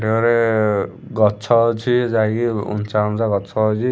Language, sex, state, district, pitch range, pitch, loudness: Odia, male, Odisha, Khordha, 105-115 Hz, 110 Hz, -18 LUFS